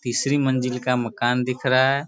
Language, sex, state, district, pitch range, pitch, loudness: Hindi, male, Bihar, Sitamarhi, 125-135 Hz, 125 Hz, -22 LUFS